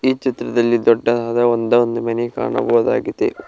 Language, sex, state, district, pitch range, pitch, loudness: Kannada, male, Karnataka, Koppal, 115-120 Hz, 120 Hz, -17 LUFS